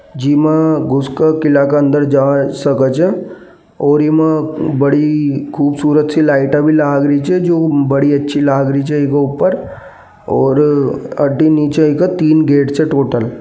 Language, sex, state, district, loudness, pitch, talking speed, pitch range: Marwari, male, Rajasthan, Nagaur, -13 LUFS, 145 Hz, 165 wpm, 140-155 Hz